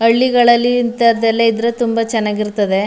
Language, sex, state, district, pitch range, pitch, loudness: Kannada, female, Karnataka, Mysore, 220-235 Hz, 230 Hz, -14 LUFS